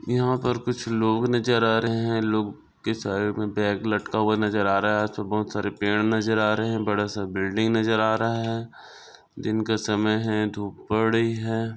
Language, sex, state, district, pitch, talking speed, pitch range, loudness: Hindi, male, Maharashtra, Chandrapur, 110 Hz, 195 wpm, 105-115 Hz, -24 LUFS